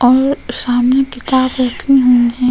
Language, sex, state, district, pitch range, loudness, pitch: Hindi, female, Goa, North and South Goa, 245-265 Hz, -13 LUFS, 255 Hz